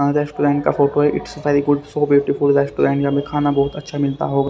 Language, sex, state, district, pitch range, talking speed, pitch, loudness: Hindi, male, Haryana, Rohtak, 140-145 Hz, 225 wpm, 145 Hz, -18 LUFS